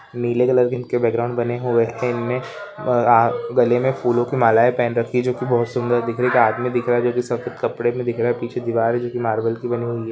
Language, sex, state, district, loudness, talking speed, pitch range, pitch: Hindi, male, Rajasthan, Nagaur, -20 LUFS, 275 wpm, 120-125 Hz, 120 Hz